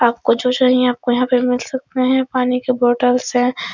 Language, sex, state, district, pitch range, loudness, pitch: Hindi, female, Bihar, Araria, 245-255 Hz, -16 LUFS, 250 Hz